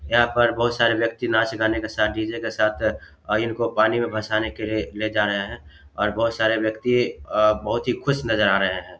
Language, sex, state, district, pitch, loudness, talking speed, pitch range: Hindi, male, Bihar, Samastipur, 110 Hz, -22 LUFS, 235 wpm, 105-115 Hz